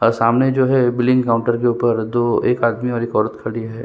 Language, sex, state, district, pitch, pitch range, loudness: Hindi, male, Chhattisgarh, Sukma, 120 Hz, 115-125 Hz, -17 LUFS